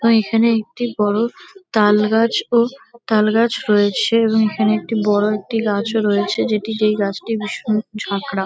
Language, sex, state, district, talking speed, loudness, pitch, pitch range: Bengali, female, West Bengal, Kolkata, 135 wpm, -18 LUFS, 215 Hz, 210-230 Hz